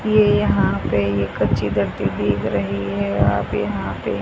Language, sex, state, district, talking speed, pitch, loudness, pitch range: Hindi, female, Haryana, Charkhi Dadri, 170 wpm, 100 Hz, -20 LUFS, 100-105 Hz